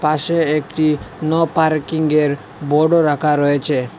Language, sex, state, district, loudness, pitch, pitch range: Bengali, male, Assam, Hailakandi, -17 LUFS, 150 Hz, 145-160 Hz